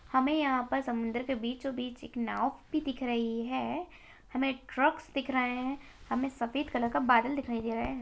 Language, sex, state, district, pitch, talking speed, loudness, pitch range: Hindi, female, Bihar, Begusarai, 260 Hz, 195 wpm, -32 LUFS, 240-275 Hz